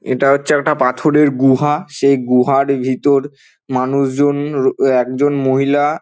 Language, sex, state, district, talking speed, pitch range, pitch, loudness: Bengali, male, West Bengal, Dakshin Dinajpur, 120 wpm, 130-145 Hz, 140 Hz, -14 LUFS